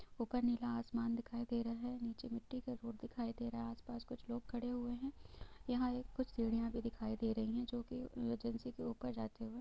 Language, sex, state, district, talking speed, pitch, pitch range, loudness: Hindi, female, Bihar, Gopalganj, 235 wpm, 235 Hz, 230-245 Hz, -43 LUFS